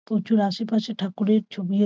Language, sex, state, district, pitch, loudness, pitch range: Bengali, female, West Bengal, Purulia, 210 Hz, -24 LUFS, 200-220 Hz